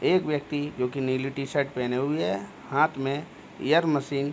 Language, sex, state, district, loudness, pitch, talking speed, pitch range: Hindi, male, Bihar, Begusarai, -27 LUFS, 140 Hz, 180 wpm, 135-150 Hz